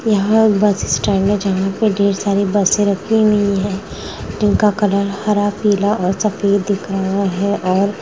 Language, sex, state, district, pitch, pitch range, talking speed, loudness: Hindi, female, Chhattisgarh, Rajnandgaon, 200 Hz, 195-210 Hz, 170 wpm, -16 LUFS